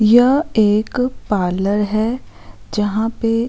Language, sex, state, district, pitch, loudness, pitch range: Hindi, female, Uttarakhand, Uttarkashi, 220 Hz, -17 LUFS, 210-240 Hz